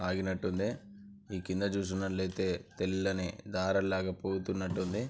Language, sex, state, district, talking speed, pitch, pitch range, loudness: Telugu, male, Andhra Pradesh, Anantapur, 80 wpm, 95 Hz, 95-100 Hz, -34 LUFS